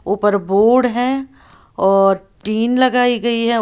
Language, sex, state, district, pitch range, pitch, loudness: Hindi, female, Uttar Pradesh, Lalitpur, 200-245 Hz, 230 Hz, -15 LUFS